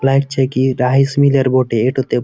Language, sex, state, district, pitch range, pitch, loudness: Bengali, male, West Bengal, Malda, 130-135 Hz, 130 Hz, -14 LUFS